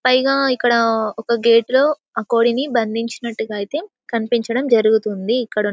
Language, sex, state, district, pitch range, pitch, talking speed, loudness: Telugu, female, Telangana, Karimnagar, 225-255 Hz, 235 Hz, 125 wpm, -18 LUFS